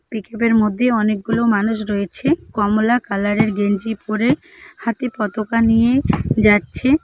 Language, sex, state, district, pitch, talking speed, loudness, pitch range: Bengali, female, West Bengal, Cooch Behar, 220 Hz, 100 wpm, -18 LUFS, 210-235 Hz